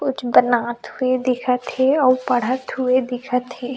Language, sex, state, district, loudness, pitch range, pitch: Chhattisgarhi, female, Chhattisgarh, Rajnandgaon, -19 LUFS, 250-260 Hz, 255 Hz